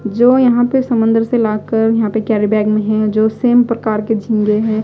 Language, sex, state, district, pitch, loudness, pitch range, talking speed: Hindi, female, Odisha, Malkangiri, 220 Hz, -14 LUFS, 215-235 Hz, 225 wpm